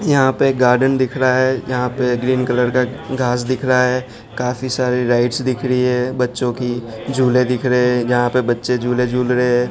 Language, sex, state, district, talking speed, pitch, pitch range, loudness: Hindi, male, Gujarat, Gandhinagar, 210 wpm, 125 Hz, 125-130 Hz, -17 LUFS